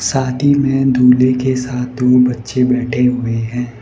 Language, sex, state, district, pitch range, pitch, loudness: Hindi, male, Arunachal Pradesh, Lower Dibang Valley, 125-130 Hz, 125 Hz, -14 LUFS